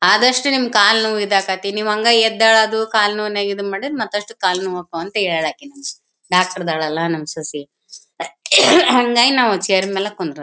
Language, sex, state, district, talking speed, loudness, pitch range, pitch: Kannada, female, Karnataka, Bellary, 165 wpm, -16 LUFS, 180-225 Hz, 205 Hz